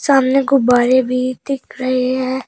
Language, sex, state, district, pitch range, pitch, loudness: Hindi, female, Uttar Pradesh, Shamli, 255-270 Hz, 255 Hz, -15 LUFS